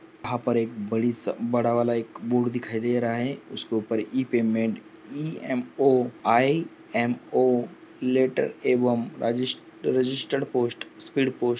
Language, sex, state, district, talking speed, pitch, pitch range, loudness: Hindi, male, Maharashtra, Pune, 130 wpm, 120 Hz, 115-130 Hz, -25 LUFS